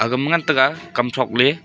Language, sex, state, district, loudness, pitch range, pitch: Wancho, male, Arunachal Pradesh, Longding, -18 LUFS, 125-160 Hz, 130 Hz